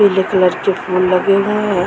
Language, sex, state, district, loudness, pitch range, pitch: Hindi, female, Uttar Pradesh, Muzaffarnagar, -14 LUFS, 185-200 Hz, 190 Hz